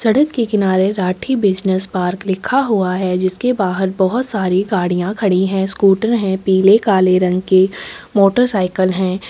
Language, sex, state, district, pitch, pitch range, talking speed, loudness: Hindi, female, Chhattisgarh, Sukma, 190 Hz, 185-210 Hz, 160 wpm, -15 LUFS